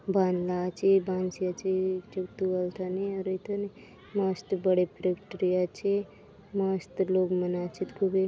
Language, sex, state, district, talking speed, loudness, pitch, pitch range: Halbi, female, Chhattisgarh, Bastar, 150 wpm, -30 LUFS, 190 Hz, 185-195 Hz